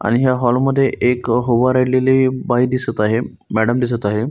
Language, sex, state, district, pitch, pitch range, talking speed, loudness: Marathi, male, Maharashtra, Solapur, 125 Hz, 115-130 Hz, 180 wpm, -16 LUFS